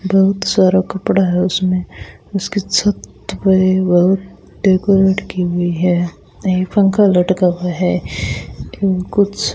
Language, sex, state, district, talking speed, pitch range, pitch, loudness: Hindi, female, Rajasthan, Bikaner, 130 wpm, 180-195 Hz, 185 Hz, -15 LUFS